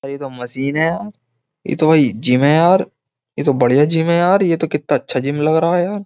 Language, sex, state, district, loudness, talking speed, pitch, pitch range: Hindi, male, Uttar Pradesh, Jyotiba Phule Nagar, -16 LUFS, 255 wpm, 150 Hz, 135-170 Hz